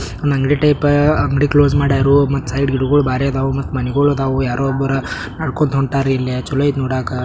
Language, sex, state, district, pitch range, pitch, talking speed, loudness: Kannada, male, Karnataka, Belgaum, 130-145 Hz, 135 Hz, 190 wpm, -16 LUFS